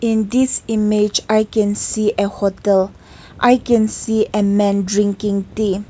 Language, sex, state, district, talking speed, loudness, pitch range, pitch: English, female, Nagaland, Kohima, 150 wpm, -17 LUFS, 200-220 Hz, 210 Hz